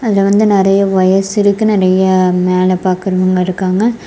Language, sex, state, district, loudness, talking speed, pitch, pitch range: Tamil, female, Tamil Nadu, Kanyakumari, -12 LUFS, 135 wpm, 190 Hz, 185-200 Hz